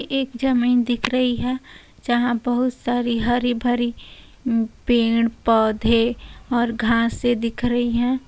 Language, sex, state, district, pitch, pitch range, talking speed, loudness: Hindi, female, Uttar Pradesh, Hamirpur, 240 Hz, 230-245 Hz, 130 wpm, -21 LUFS